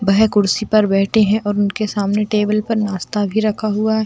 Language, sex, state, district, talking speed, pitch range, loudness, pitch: Hindi, female, Bihar, Darbhanga, 220 wpm, 205-215 Hz, -17 LUFS, 210 Hz